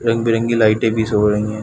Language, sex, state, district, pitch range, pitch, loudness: Hindi, male, Chhattisgarh, Bilaspur, 105-115 Hz, 110 Hz, -16 LUFS